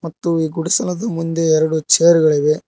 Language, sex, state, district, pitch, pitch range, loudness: Kannada, male, Karnataka, Koppal, 165 Hz, 160-170 Hz, -16 LUFS